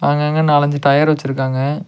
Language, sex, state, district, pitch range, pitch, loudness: Tamil, male, Tamil Nadu, Nilgiris, 140-150 Hz, 145 Hz, -15 LUFS